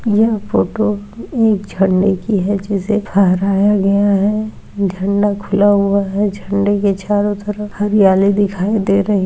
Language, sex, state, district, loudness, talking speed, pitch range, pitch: Hindi, female, Rajasthan, Nagaur, -15 LUFS, 150 wpm, 195-210 Hz, 205 Hz